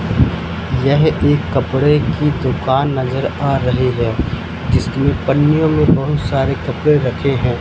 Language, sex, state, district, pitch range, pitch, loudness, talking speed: Hindi, male, Madhya Pradesh, Katni, 130-145 Hz, 135 Hz, -16 LUFS, 135 wpm